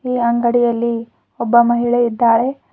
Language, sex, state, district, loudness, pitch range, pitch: Kannada, female, Karnataka, Bidar, -16 LUFS, 235-240 Hz, 235 Hz